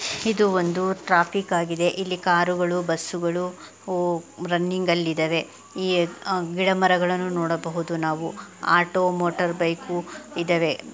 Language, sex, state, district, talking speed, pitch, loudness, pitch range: Kannada, female, Karnataka, Dakshina Kannada, 115 wpm, 175 Hz, -23 LUFS, 170-185 Hz